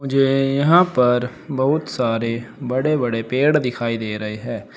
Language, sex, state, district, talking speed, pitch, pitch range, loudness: Hindi, male, Uttar Pradesh, Saharanpur, 150 wpm, 125 Hz, 115-140 Hz, -19 LUFS